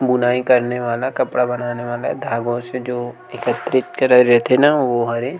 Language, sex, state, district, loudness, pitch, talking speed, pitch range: Chhattisgarhi, male, Chhattisgarh, Rajnandgaon, -18 LUFS, 125 Hz, 165 wpm, 120-125 Hz